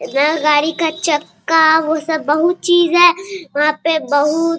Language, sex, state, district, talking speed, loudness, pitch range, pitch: Hindi, female, Bihar, Araria, 170 wpm, -14 LUFS, 300-335 Hz, 315 Hz